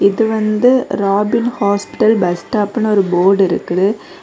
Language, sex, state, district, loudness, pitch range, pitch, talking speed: Tamil, female, Tamil Nadu, Kanyakumari, -14 LUFS, 195-225 Hz, 210 Hz, 130 wpm